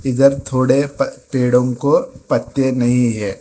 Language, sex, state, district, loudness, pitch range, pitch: Hindi, female, Telangana, Hyderabad, -17 LUFS, 125-140 Hz, 130 Hz